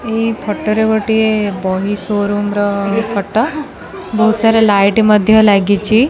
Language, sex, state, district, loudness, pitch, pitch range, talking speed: Odia, female, Odisha, Khordha, -13 LUFS, 215 Hz, 205-220 Hz, 135 wpm